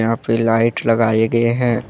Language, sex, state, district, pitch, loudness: Hindi, male, Jharkhand, Deoghar, 115 Hz, -16 LUFS